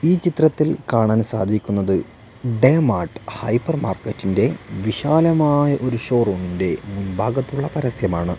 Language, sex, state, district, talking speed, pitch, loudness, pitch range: Malayalam, male, Kerala, Wayanad, 100 wpm, 120 Hz, -20 LUFS, 100-145 Hz